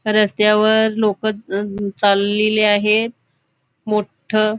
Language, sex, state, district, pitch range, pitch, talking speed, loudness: Marathi, female, Goa, North and South Goa, 205-215 Hz, 210 Hz, 80 wpm, -17 LUFS